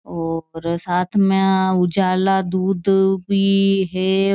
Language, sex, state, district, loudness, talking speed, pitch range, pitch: Marwari, female, Rajasthan, Churu, -18 LUFS, 95 wpm, 180-195 Hz, 190 Hz